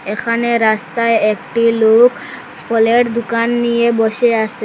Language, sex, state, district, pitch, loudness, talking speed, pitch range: Bengali, female, Assam, Hailakandi, 230 Hz, -14 LUFS, 115 wpm, 220-235 Hz